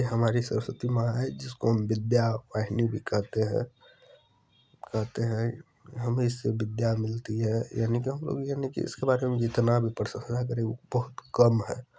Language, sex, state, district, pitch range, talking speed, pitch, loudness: Hindi, male, Bihar, Supaul, 110-125 Hz, 140 wpm, 115 Hz, -29 LUFS